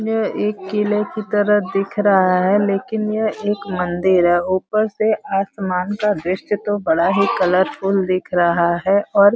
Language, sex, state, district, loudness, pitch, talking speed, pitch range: Hindi, female, Uttar Pradesh, Varanasi, -18 LUFS, 200 Hz, 175 wpm, 185-210 Hz